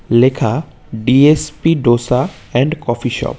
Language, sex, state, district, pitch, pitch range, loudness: Bengali, male, West Bengal, Cooch Behar, 130 Hz, 120-150 Hz, -14 LUFS